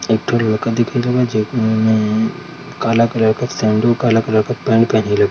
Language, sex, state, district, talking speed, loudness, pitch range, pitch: Hindi, male, Bihar, Darbhanga, 190 wpm, -16 LUFS, 110-120 Hz, 110 Hz